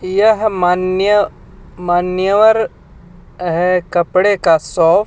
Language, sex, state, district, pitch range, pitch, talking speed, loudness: Hindi, male, Jharkhand, Ranchi, 175-205 Hz, 185 Hz, 95 wpm, -14 LUFS